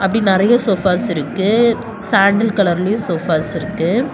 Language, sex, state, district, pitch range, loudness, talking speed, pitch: Tamil, female, Tamil Nadu, Kanyakumari, 185-225 Hz, -15 LUFS, 115 wpm, 200 Hz